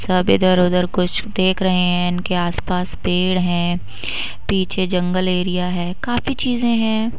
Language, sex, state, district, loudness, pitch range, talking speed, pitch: Hindi, female, Uttar Pradesh, Budaun, -19 LUFS, 180-190 Hz, 165 wpm, 180 Hz